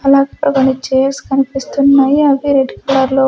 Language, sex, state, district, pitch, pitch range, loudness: Telugu, female, Andhra Pradesh, Sri Satya Sai, 275 Hz, 265-280 Hz, -13 LUFS